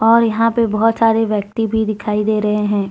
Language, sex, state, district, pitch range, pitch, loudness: Hindi, female, Jharkhand, Deoghar, 210-225 Hz, 220 Hz, -16 LUFS